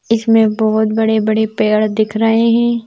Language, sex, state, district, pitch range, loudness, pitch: Hindi, female, Madhya Pradesh, Bhopal, 215-225 Hz, -14 LUFS, 220 Hz